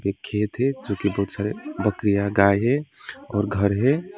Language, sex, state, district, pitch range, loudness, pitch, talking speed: Hindi, male, West Bengal, Alipurduar, 100-130 Hz, -23 LUFS, 105 Hz, 170 wpm